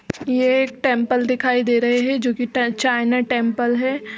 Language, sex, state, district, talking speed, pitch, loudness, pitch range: Hindi, female, Uttar Pradesh, Jalaun, 185 wpm, 250 Hz, -19 LUFS, 240-255 Hz